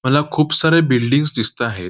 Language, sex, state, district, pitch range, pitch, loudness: Marathi, male, Maharashtra, Nagpur, 120-150 Hz, 140 Hz, -15 LUFS